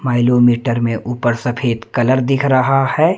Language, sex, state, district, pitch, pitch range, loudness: Hindi, male, Madhya Pradesh, Umaria, 125 Hz, 120-135 Hz, -15 LUFS